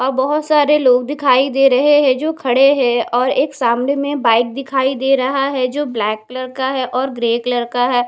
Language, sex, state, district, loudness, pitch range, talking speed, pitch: Hindi, female, Odisha, Nuapada, -15 LUFS, 245-275 Hz, 225 wpm, 265 Hz